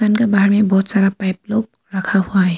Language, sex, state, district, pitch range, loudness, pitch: Hindi, female, Arunachal Pradesh, Lower Dibang Valley, 190-210 Hz, -16 LUFS, 200 Hz